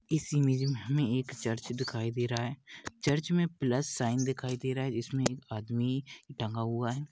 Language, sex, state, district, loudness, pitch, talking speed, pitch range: Hindi, male, Maharashtra, Pune, -32 LUFS, 130 Hz, 200 wpm, 120-140 Hz